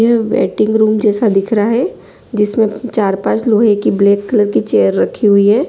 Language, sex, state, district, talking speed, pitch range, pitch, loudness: Hindi, female, Bihar, Saran, 200 wpm, 205-225 Hz, 215 Hz, -13 LUFS